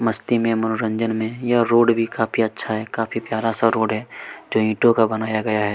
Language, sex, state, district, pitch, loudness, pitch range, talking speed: Hindi, male, Chhattisgarh, Kabirdham, 110 Hz, -20 LUFS, 110-115 Hz, 220 wpm